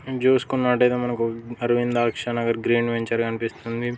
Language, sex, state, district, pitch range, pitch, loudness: Telugu, male, Telangana, Nalgonda, 115-125 Hz, 120 Hz, -23 LUFS